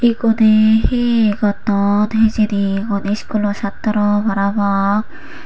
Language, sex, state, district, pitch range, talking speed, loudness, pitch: Chakma, female, Tripura, Unakoti, 200-220 Hz, 90 wpm, -16 LUFS, 210 Hz